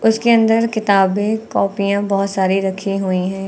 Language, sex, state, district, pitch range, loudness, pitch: Hindi, female, Uttar Pradesh, Lucknow, 195-220 Hz, -16 LUFS, 200 Hz